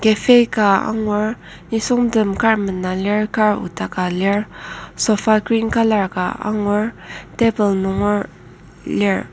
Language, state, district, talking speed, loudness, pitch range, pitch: Ao, Nagaland, Kohima, 115 wpm, -18 LUFS, 195-220 Hz, 210 Hz